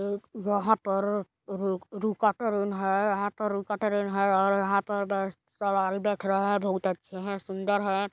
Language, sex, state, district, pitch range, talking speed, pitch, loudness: Hindi, female, Chhattisgarh, Balrampur, 195-205 Hz, 160 wpm, 200 Hz, -28 LUFS